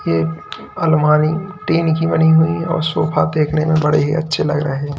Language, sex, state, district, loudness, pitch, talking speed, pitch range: Hindi, male, Uttar Pradesh, Lalitpur, -16 LUFS, 155 Hz, 180 wpm, 150-160 Hz